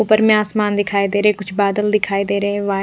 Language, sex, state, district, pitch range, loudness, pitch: Hindi, female, Odisha, Khordha, 200-210 Hz, -17 LUFS, 205 Hz